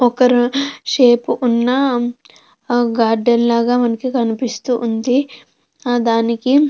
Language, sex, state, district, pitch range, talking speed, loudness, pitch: Telugu, female, Andhra Pradesh, Krishna, 235-255 Hz, 100 wpm, -16 LUFS, 245 Hz